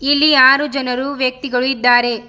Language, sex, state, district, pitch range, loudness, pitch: Kannada, female, Karnataka, Bidar, 250-280 Hz, -14 LUFS, 260 Hz